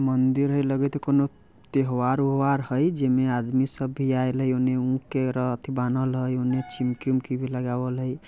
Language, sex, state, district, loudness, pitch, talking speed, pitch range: Bajjika, male, Bihar, Vaishali, -25 LUFS, 130 Hz, 165 wpm, 125-135 Hz